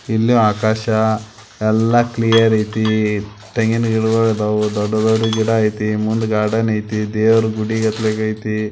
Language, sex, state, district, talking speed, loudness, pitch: Kannada, male, Karnataka, Belgaum, 125 wpm, -17 LUFS, 110 Hz